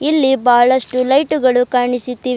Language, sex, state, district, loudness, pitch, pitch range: Kannada, female, Karnataka, Bidar, -14 LUFS, 255 Hz, 250-265 Hz